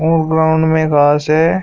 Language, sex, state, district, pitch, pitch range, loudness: Hindi, male, Uttar Pradesh, Shamli, 160 Hz, 155-160 Hz, -13 LUFS